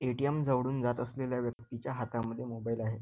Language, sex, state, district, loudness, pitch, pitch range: Marathi, male, Maharashtra, Nagpur, -34 LUFS, 125 Hz, 115-130 Hz